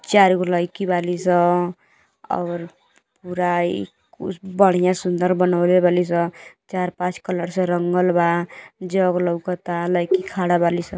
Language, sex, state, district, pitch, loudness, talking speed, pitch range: Hindi, female, Uttar Pradesh, Gorakhpur, 180 Hz, -20 LUFS, 135 wpm, 175-185 Hz